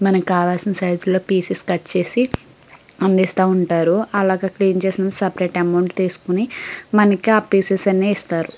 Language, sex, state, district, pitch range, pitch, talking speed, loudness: Telugu, female, Andhra Pradesh, Srikakulam, 180-195 Hz, 190 Hz, 140 wpm, -18 LUFS